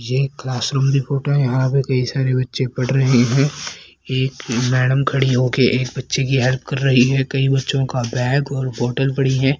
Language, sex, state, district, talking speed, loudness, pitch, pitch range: Hindi, female, Haryana, Rohtak, 205 wpm, -18 LUFS, 130 Hz, 125-135 Hz